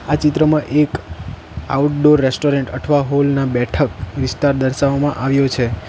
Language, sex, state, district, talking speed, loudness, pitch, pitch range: Gujarati, male, Gujarat, Valsad, 130 wpm, -16 LUFS, 140 Hz, 130-145 Hz